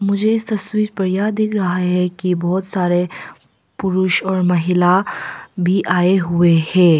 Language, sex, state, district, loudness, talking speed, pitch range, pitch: Hindi, female, Arunachal Pradesh, Papum Pare, -17 LUFS, 155 wpm, 180-195 Hz, 185 Hz